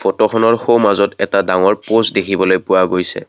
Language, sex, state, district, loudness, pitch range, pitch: Assamese, male, Assam, Kamrup Metropolitan, -14 LUFS, 95-115 Hz, 100 Hz